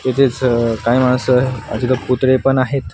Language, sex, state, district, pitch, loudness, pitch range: Marathi, male, Maharashtra, Washim, 130 Hz, -15 LUFS, 125-130 Hz